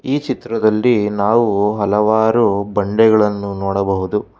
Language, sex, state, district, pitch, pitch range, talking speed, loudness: Kannada, male, Karnataka, Bangalore, 105 Hz, 100-110 Hz, 80 wpm, -16 LUFS